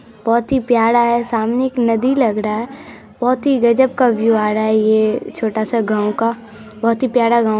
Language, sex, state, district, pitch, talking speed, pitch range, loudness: Hindi, female, Bihar, Saharsa, 230 Hz, 215 wpm, 220-245 Hz, -16 LUFS